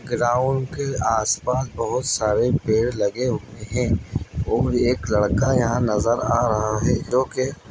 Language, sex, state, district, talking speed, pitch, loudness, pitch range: Hindi, female, Chhattisgarh, Kabirdham, 155 wpm, 120 Hz, -22 LUFS, 110-130 Hz